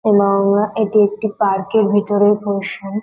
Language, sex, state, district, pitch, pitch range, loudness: Bengali, female, West Bengal, North 24 Parganas, 205 Hz, 200-210 Hz, -16 LUFS